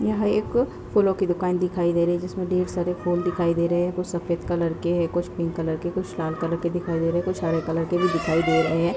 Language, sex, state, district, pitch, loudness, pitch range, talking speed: Hindi, female, Uttar Pradesh, Hamirpur, 175 Hz, -24 LUFS, 170-180 Hz, 285 wpm